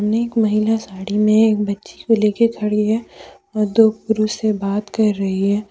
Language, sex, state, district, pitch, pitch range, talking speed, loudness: Hindi, female, Jharkhand, Deoghar, 215 Hz, 205-220 Hz, 190 wpm, -18 LUFS